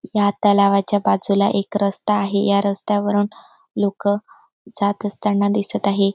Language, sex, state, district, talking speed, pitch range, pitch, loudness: Marathi, female, Maharashtra, Chandrapur, 125 wpm, 200-205 Hz, 200 Hz, -19 LUFS